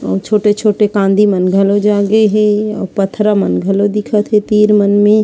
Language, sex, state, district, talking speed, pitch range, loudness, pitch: Chhattisgarhi, female, Chhattisgarh, Sarguja, 185 wpm, 200-210 Hz, -12 LUFS, 210 Hz